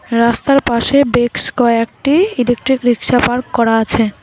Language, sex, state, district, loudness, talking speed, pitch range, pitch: Bengali, female, West Bengal, Alipurduar, -14 LUFS, 125 wpm, 230-265 Hz, 245 Hz